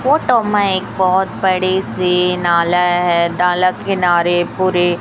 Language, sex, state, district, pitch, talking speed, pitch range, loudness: Hindi, female, Chhattisgarh, Raipur, 180 Hz, 130 wpm, 175-190 Hz, -15 LUFS